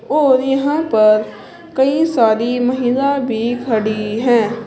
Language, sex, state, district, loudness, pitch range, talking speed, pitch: Hindi, female, Uttar Pradesh, Saharanpur, -15 LUFS, 225-275 Hz, 115 wpm, 245 Hz